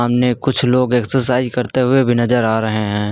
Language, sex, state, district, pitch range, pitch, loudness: Hindi, male, Uttar Pradesh, Lucknow, 120-125 Hz, 125 Hz, -16 LUFS